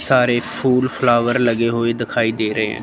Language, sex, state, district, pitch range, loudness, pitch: Hindi, female, Chandigarh, Chandigarh, 115-125 Hz, -17 LUFS, 120 Hz